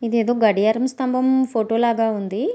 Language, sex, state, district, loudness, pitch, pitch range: Telugu, female, Andhra Pradesh, Visakhapatnam, -19 LUFS, 230 Hz, 220-255 Hz